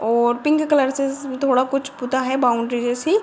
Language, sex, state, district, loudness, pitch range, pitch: Hindi, female, Uttar Pradesh, Deoria, -20 LUFS, 245-275 Hz, 265 Hz